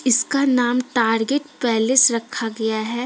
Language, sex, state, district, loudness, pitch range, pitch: Hindi, female, Jharkhand, Deoghar, -19 LUFS, 225-260 Hz, 245 Hz